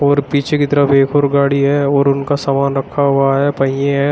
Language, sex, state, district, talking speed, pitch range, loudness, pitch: Hindi, male, Uttar Pradesh, Shamli, 235 wpm, 140-145 Hz, -14 LUFS, 140 Hz